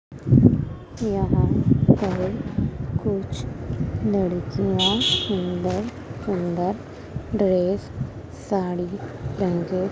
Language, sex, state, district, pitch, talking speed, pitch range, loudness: Hindi, female, Madhya Pradesh, Dhar, 180 Hz, 50 wpm, 175-190 Hz, -23 LUFS